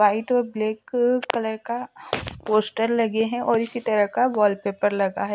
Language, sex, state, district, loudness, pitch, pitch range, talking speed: Hindi, female, Bihar, Kaimur, -23 LUFS, 220 Hz, 210-240 Hz, 170 wpm